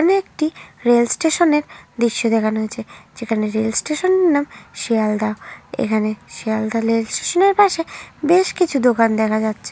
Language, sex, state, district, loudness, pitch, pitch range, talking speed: Bengali, female, West Bengal, North 24 Parganas, -18 LUFS, 235 Hz, 220-320 Hz, 155 wpm